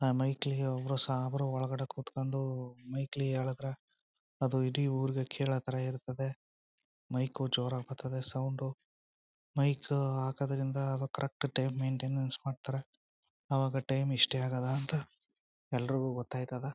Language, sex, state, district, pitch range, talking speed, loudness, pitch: Kannada, male, Karnataka, Chamarajanagar, 130-135 Hz, 110 wpm, -35 LUFS, 135 Hz